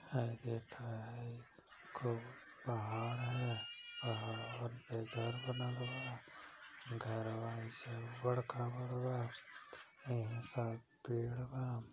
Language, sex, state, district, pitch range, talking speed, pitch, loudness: Hindi, male, Uttar Pradesh, Deoria, 115-125 Hz, 90 wpm, 120 Hz, -43 LUFS